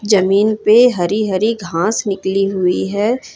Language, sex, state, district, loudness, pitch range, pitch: Hindi, female, Jharkhand, Ranchi, -15 LUFS, 190-220 Hz, 200 Hz